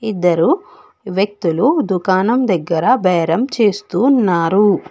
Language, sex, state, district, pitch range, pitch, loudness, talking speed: Telugu, female, Telangana, Hyderabad, 175-235 Hz, 195 Hz, -15 LUFS, 85 wpm